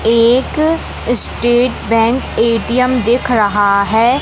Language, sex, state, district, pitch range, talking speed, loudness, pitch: Hindi, male, Madhya Pradesh, Katni, 225-250 Hz, 100 wpm, -13 LUFS, 235 Hz